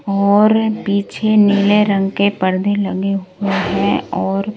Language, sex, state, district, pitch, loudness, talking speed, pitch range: Hindi, male, Delhi, New Delhi, 200 Hz, -15 LUFS, 130 wpm, 195-210 Hz